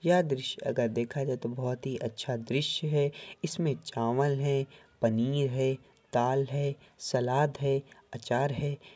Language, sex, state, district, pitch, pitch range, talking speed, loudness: Hindi, male, Andhra Pradesh, Krishna, 135 Hz, 125-145 Hz, 145 wpm, -31 LUFS